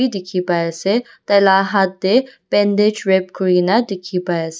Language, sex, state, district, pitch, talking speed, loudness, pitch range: Nagamese, female, Nagaland, Dimapur, 195 Hz, 180 wpm, -17 LUFS, 180-205 Hz